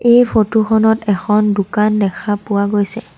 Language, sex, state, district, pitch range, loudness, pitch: Assamese, female, Assam, Sonitpur, 205-220 Hz, -14 LUFS, 210 Hz